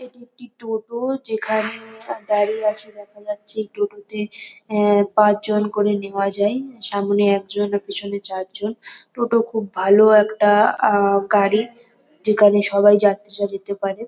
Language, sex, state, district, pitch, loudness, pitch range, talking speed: Bengali, female, West Bengal, North 24 Parganas, 210 Hz, -19 LUFS, 205-220 Hz, 130 wpm